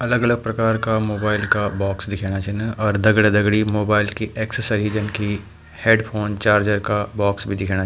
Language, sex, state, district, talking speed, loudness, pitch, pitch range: Garhwali, male, Uttarakhand, Tehri Garhwal, 160 wpm, -20 LUFS, 105 Hz, 100-110 Hz